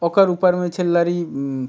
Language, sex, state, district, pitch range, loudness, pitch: Maithili, male, Bihar, Supaul, 170-180 Hz, -19 LUFS, 175 Hz